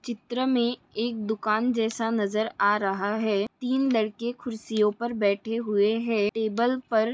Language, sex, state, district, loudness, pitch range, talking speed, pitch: Hindi, female, Maharashtra, Aurangabad, -26 LUFS, 215-235 Hz, 150 wpm, 225 Hz